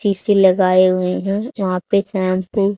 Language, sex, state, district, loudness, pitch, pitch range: Hindi, female, Haryana, Charkhi Dadri, -16 LUFS, 190 Hz, 185-200 Hz